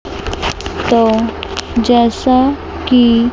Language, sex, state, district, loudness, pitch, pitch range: Hindi, female, Chandigarh, Chandigarh, -14 LUFS, 235 Hz, 230-250 Hz